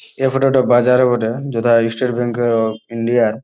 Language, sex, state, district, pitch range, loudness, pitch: Bengali, male, West Bengal, Malda, 115-125 Hz, -16 LUFS, 120 Hz